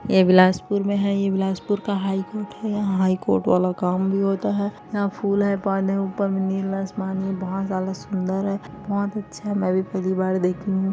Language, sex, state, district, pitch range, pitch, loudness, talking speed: Hindi, male, Chhattisgarh, Bilaspur, 190-200 Hz, 195 Hz, -23 LUFS, 210 wpm